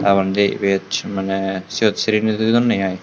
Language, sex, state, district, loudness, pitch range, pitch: Chakma, male, Tripura, Unakoti, -18 LUFS, 95-110 Hz, 100 Hz